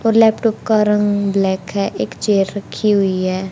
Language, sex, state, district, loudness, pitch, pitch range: Hindi, female, Haryana, Charkhi Dadri, -17 LUFS, 205 Hz, 195-215 Hz